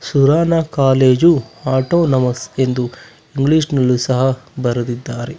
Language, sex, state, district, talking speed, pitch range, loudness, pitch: Kannada, male, Karnataka, Bangalore, 90 wpm, 125-155 Hz, -16 LUFS, 130 Hz